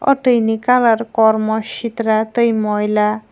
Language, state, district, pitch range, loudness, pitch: Kokborok, Tripura, Dhalai, 220-235 Hz, -16 LUFS, 225 Hz